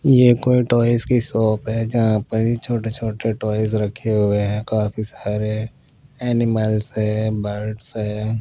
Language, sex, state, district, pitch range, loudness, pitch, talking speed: Hindi, male, Punjab, Pathankot, 105-120 Hz, -20 LUFS, 110 Hz, 145 wpm